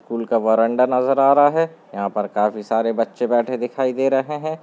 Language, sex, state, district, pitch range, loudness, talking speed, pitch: Hindi, male, Bihar, Gopalganj, 115-135 Hz, -19 LUFS, 220 wpm, 120 Hz